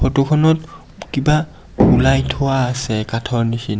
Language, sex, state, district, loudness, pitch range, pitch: Assamese, male, Assam, Kamrup Metropolitan, -17 LUFS, 115-150 Hz, 135 Hz